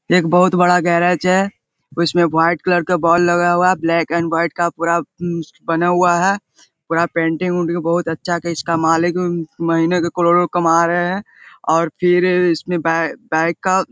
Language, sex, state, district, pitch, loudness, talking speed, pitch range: Hindi, male, Bihar, Jahanabad, 170 Hz, -16 LUFS, 200 wpm, 165-180 Hz